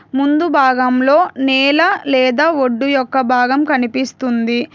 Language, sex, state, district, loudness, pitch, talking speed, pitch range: Telugu, female, Telangana, Hyderabad, -14 LUFS, 265 Hz, 100 wpm, 255-285 Hz